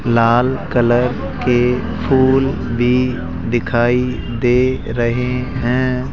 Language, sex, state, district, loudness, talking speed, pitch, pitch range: Hindi, male, Rajasthan, Jaipur, -16 LUFS, 90 wpm, 125 Hz, 120-125 Hz